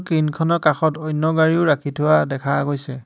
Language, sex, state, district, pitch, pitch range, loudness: Assamese, male, Assam, Hailakandi, 155 Hz, 145-160 Hz, -19 LUFS